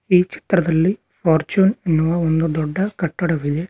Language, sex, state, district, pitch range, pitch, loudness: Kannada, male, Karnataka, Koppal, 160-185 Hz, 170 Hz, -19 LUFS